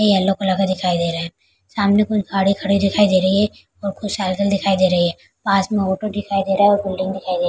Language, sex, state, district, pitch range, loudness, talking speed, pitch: Hindi, female, Bihar, Araria, 185-200 Hz, -18 LUFS, 270 wpm, 195 Hz